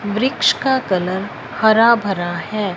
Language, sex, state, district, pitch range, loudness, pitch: Hindi, female, Punjab, Fazilka, 185-235 Hz, -17 LUFS, 205 Hz